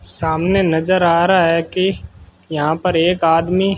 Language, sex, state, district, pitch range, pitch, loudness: Hindi, male, Rajasthan, Bikaner, 160-185 Hz, 170 Hz, -15 LUFS